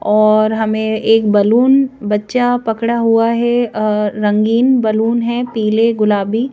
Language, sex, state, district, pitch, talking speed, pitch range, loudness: Hindi, female, Madhya Pradesh, Bhopal, 225 Hz, 120 wpm, 215-235 Hz, -14 LUFS